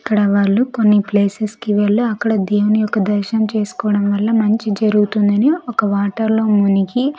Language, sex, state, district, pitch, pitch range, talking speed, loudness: Telugu, female, Andhra Pradesh, Sri Satya Sai, 210 Hz, 205-220 Hz, 150 wpm, -16 LUFS